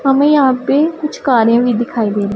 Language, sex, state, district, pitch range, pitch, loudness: Hindi, female, Punjab, Pathankot, 235-285 Hz, 255 Hz, -13 LUFS